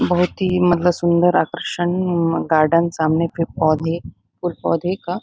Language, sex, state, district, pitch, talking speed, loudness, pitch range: Hindi, female, Chhattisgarh, Bastar, 170 Hz, 150 wpm, -18 LUFS, 165-180 Hz